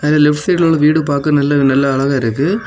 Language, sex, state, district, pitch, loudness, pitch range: Tamil, male, Tamil Nadu, Kanyakumari, 150 Hz, -13 LUFS, 140-155 Hz